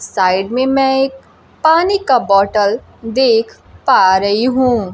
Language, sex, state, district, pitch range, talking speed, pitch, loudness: Hindi, female, Bihar, Kaimur, 200-265 Hz, 135 wpm, 240 Hz, -13 LUFS